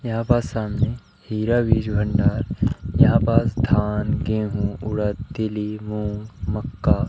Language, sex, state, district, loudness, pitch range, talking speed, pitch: Hindi, male, Madhya Pradesh, Umaria, -22 LUFS, 105-115 Hz, 120 wpm, 110 Hz